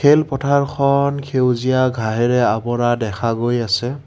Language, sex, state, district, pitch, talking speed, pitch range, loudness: Assamese, male, Assam, Kamrup Metropolitan, 125 Hz, 120 wpm, 120-140 Hz, -17 LUFS